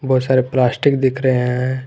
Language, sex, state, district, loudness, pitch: Hindi, male, Jharkhand, Garhwa, -16 LUFS, 130 Hz